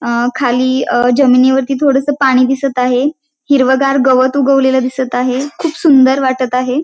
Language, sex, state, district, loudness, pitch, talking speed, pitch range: Marathi, female, Maharashtra, Pune, -12 LUFS, 265 Hz, 140 wpm, 255-275 Hz